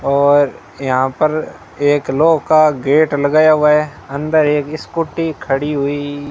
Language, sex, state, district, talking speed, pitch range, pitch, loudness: Hindi, male, Rajasthan, Bikaner, 150 wpm, 140-155 Hz, 145 Hz, -15 LUFS